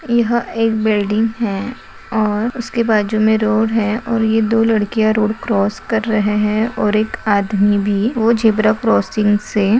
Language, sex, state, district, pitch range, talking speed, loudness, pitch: Hindi, female, Maharashtra, Pune, 210-225 Hz, 170 wpm, -16 LUFS, 220 Hz